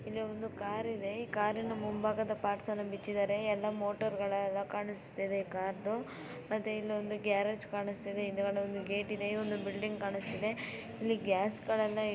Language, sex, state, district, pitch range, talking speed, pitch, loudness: Kannada, female, Karnataka, Shimoga, 200-215 Hz, 135 wpm, 205 Hz, -36 LUFS